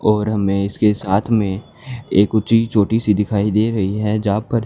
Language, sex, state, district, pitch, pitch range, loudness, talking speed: Hindi, male, Haryana, Charkhi Dadri, 105 Hz, 100-110 Hz, -17 LUFS, 195 wpm